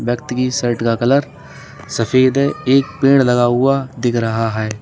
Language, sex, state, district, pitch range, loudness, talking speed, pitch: Hindi, male, Uttar Pradesh, Lalitpur, 120-135 Hz, -16 LUFS, 185 wpm, 125 Hz